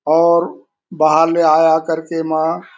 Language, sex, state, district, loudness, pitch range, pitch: Chhattisgarhi, male, Chhattisgarh, Korba, -14 LUFS, 155-165 Hz, 160 Hz